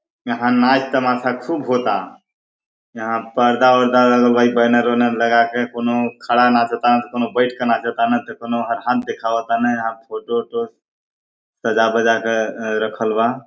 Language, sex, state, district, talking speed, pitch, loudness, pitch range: Awadhi, male, Chhattisgarh, Balrampur, 150 wpm, 120 Hz, -17 LUFS, 115-125 Hz